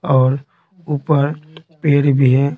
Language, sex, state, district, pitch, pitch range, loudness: Hindi, male, Bihar, Patna, 145 Hz, 140-160 Hz, -16 LUFS